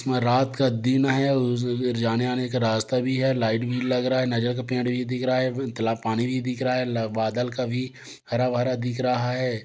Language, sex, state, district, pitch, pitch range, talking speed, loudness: Hindi, male, Chhattisgarh, Korba, 125 Hz, 120-130 Hz, 220 wpm, -24 LUFS